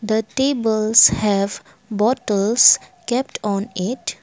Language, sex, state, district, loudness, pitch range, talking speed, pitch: English, female, Assam, Kamrup Metropolitan, -17 LUFS, 205-245 Hz, 100 wpm, 220 Hz